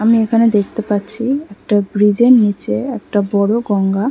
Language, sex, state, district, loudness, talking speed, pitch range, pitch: Bengali, female, West Bengal, Kolkata, -15 LUFS, 145 wpm, 200-230 Hz, 210 Hz